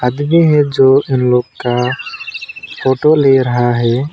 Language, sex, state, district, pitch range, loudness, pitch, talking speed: Hindi, male, West Bengal, Alipurduar, 125-145 Hz, -13 LUFS, 130 Hz, 145 wpm